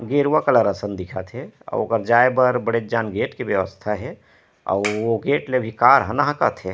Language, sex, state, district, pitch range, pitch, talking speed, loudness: Chhattisgarhi, male, Chhattisgarh, Rajnandgaon, 105-125 Hz, 115 Hz, 215 wpm, -20 LUFS